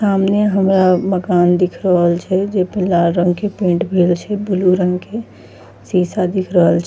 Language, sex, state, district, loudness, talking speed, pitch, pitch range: Angika, female, Bihar, Bhagalpur, -15 LUFS, 185 wpm, 185 Hz, 175-195 Hz